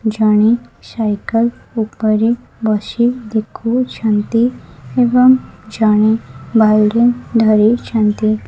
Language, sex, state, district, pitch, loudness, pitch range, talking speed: Odia, female, Odisha, Khordha, 220 Hz, -14 LUFS, 215-235 Hz, 65 wpm